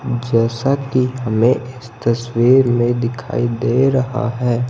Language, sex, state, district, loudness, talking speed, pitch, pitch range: Hindi, male, Himachal Pradesh, Shimla, -17 LUFS, 130 wpm, 120 Hz, 120-130 Hz